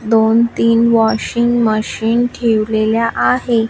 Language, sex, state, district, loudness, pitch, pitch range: Marathi, female, Maharashtra, Washim, -14 LUFS, 230 Hz, 220-235 Hz